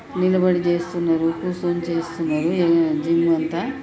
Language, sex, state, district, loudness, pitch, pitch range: Telugu, female, Telangana, Nalgonda, -21 LUFS, 170 Hz, 165-175 Hz